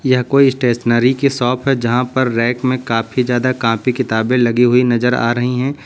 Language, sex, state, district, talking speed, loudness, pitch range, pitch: Hindi, male, Uttar Pradesh, Lucknow, 205 wpm, -15 LUFS, 120-130 Hz, 125 Hz